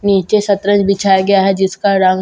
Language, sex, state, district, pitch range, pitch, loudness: Hindi, female, Bihar, Katihar, 190-200 Hz, 195 Hz, -13 LUFS